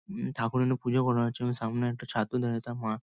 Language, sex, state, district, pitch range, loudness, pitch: Bengali, male, West Bengal, Kolkata, 115-125 Hz, -30 LUFS, 120 Hz